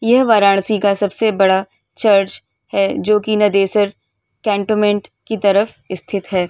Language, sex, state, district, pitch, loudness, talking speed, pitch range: Hindi, female, Uttar Pradesh, Varanasi, 205 Hz, -16 LUFS, 130 wpm, 195-215 Hz